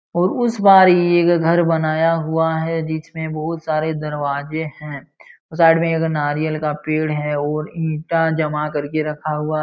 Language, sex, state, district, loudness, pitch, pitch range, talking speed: Hindi, male, Uttar Pradesh, Jalaun, -18 LUFS, 160 Hz, 150-165 Hz, 170 wpm